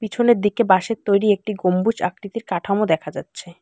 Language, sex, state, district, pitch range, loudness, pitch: Bengali, female, West Bengal, Alipurduar, 180-220 Hz, -19 LUFS, 200 Hz